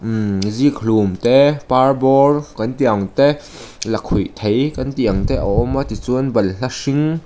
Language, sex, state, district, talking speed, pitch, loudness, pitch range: Mizo, male, Mizoram, Aizawl, 165 wpm, 130 Hz, -16 LUFS, 110-140 Hz